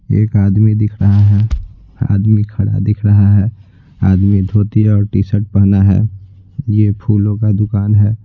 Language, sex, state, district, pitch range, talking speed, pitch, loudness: Hindi, male, Bihar, Patna, 100-105 Hz, 155 wpm, 105 Hz, -13 LUFS